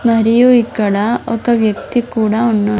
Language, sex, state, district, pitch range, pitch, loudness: Telugu, female, Andhra Pradesh, Sri Satya Sai, 215-235 Hz, 225 Hz, -13 LUFS